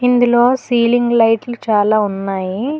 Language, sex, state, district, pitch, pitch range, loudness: Telugu, female, Telangana, Hyderabad, 235 Hz, 210-245 Hz, -15 LUFS